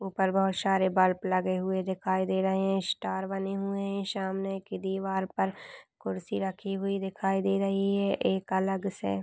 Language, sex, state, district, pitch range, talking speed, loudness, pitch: Hindi, female, Uttarakhand, Uttarkashi, 190-195 Hz, 190 wpm, -30 LUFS, 190 Hz